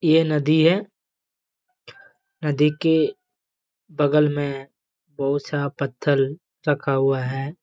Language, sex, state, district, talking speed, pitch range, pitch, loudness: Hindi, male, Bihar, Jamui, 85 wpm, 140-165 Hz, 150 Hz, -22 LUFS